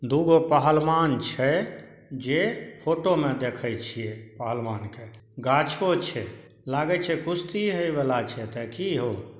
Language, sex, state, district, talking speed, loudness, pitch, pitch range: Maithili, male, Bihar, Saharsa, 140 wpm, -25 LUFS, 130 Hz, 115-165 Hz